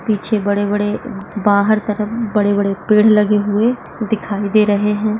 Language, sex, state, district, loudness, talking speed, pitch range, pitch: Hindi, female, Maharashtra, Dhule, -16 LUFS, 160 wpm, 205-215 Hz, 210 Hz